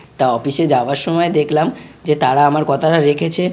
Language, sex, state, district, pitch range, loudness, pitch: Bengali, male, West Bengal, North 24 Parganas, 140-165 Hz, -15 LUFS, 150 Hz